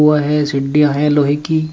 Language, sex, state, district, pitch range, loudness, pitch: Hindi, male, Uttar Pradesh, Shamli, 145-150 Hz, -15 LUFS, 150 Hz